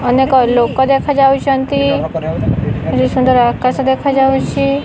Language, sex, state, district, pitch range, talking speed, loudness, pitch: Odia, female, Odisha, Khordha, 255-275 Hz, 110 wpm, -13 LUFS, 265 Hz